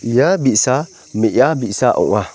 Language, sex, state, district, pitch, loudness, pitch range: Garo, male, Meghalaya, North Garo Hills, 130 Hz, -15 LUFS, 115-160 Hz